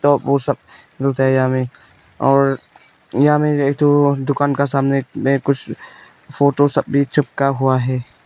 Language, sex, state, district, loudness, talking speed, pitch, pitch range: Hindi, male, Nagaland, Kohima, -17 LUFS, 165 wpm, 140 Hz, 135-145 Hz